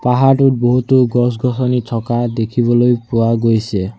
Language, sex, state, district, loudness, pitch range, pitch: Assamese, male, Assam, Sonitpur, -14 LUFS, 115-125 Hz, 120 Hz